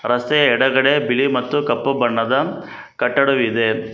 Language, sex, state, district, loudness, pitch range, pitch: Kannada, male, Karnataka, Bangalore, -17 LUFS, 120-140 Hz, 130 Hz